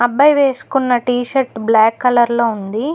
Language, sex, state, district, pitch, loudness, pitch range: Telugu, female, Telangana, Hyderabad, 245 Hz, -15 LUFS, 230-270 Hz